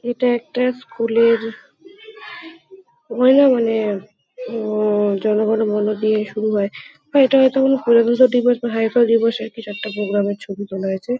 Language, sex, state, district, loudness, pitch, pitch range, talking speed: Bengali, female, West Bengal, Kolkata, -18 LUFS, 230 Hz, 215-255 Hz, 145 wpm